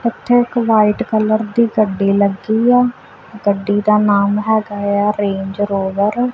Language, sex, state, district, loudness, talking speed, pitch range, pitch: Punjabi, female, Punjab, Kapurthala, -15 LUFS, 150 wpm, 200-225 Hz, 210 Hz